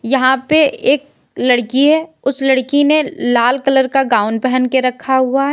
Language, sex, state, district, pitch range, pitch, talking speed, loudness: Hindi, female, Uttar Pradesh, Lalitpur, 255-280 Hz, 265 Hz, 185 wpm, -14 LUFS